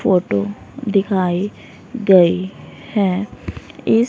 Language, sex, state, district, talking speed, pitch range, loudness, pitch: Hindi, female, Haryana, Rohtak, 75 wpm, 180-205 Hz, -18 LUFS, 190 Hz